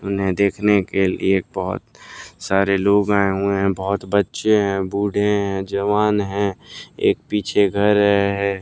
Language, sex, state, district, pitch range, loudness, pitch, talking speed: Hindi, male, Bihar, West Champaran, 95-100 Hz, -19 LUFS, 100 Hz, 145 wpm